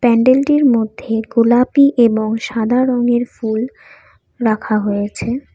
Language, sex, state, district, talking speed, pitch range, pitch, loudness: Bengali, female, Assam, Kamrup Metropolitan, 95 wpm, 225-255 Hz, 235 Hz, -15 LUFS